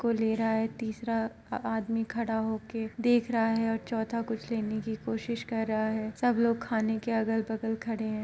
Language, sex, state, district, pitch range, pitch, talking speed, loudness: Hindi, female, Uttar Pradesh, Etah, 220-230 Hz, 225 Hz, 210 wpm, -31 LUFS